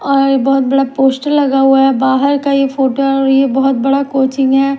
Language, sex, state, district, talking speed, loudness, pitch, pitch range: Hindi, female, Bihar, Patna, 225 wpm, -12 LUFS, 270 Hz, 270-275 Hz